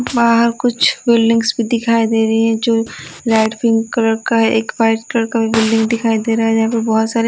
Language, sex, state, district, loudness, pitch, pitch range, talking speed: Hindi, female, Delhi, New Delhi, -15 LUFS, 225 Hz, 225-230 Hz, 230 wpm